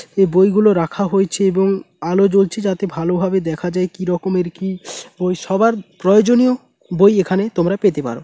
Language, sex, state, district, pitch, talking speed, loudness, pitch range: Bengali, male, West Bengal, Paschim Medinipur, 190 Hz, 160 wpm, -16 LUFS, 180-200 Hz